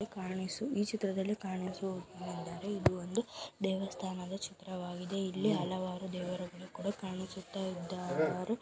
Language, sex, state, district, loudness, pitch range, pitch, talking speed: Kannada, female, Karnataka, Dharwad, -38 LUFS, 180-195 Hz, 185 Hz, 85 wpm